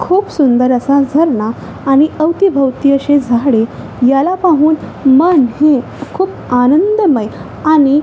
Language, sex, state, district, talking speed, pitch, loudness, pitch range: Marathi, female, Maharashtra, Chandrapur, 110 wpm, 280 Hz, -12 LUFS, 265-320 Hz